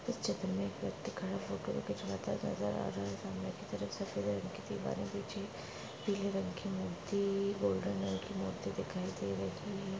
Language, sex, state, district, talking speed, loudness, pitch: Hindi, female, Maharashtra, Dhule, 185 wpm, -39 LUFS, 150 Hz